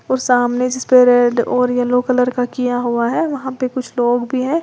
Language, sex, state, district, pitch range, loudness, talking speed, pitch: Hindi, female, Uttar Pradesh, Lalitpur, 245-255 Hz, -16 LUFS, 220 wpm, 250 Hz